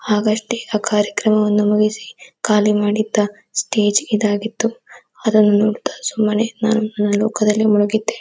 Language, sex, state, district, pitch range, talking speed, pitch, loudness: Kannada, female, Karnataka, Dakshina Kannada, 210-220 Hz, 125 wpm, 215 Hz, -17 LUFS